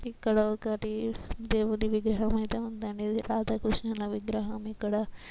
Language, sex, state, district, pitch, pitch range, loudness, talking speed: Telugu, female, Andhra Pradesh, Guntur, 220 Hz, 215-225 Hz, -31 LUFS, 100 wpm